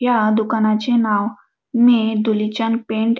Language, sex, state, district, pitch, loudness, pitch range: Marathi, female, Maharashtra, Dhule, 220 Hz, -18 LUFS, 215-235 Hz